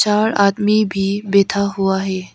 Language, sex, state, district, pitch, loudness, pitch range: Hindi, female, Arunachal Pradesh, Lower Dibang Valley, 200 Hz, -16 LUFS, 195-210 Hz